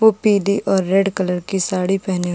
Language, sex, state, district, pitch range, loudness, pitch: Hindi, female, Uttar Pradesh, Jalaun, 185-200 Hz, -18 LUFS, 195 Hz